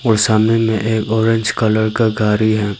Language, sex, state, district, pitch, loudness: Hindi, male, Arunachal Pradesh, Lower Dibang Valley, 110 Hz, -15 LUFS